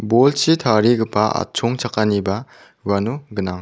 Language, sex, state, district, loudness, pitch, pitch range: Garo, male, Meghalaya, South Garo Hills, -18 LUFS, 110 Hz, 100-120 Hz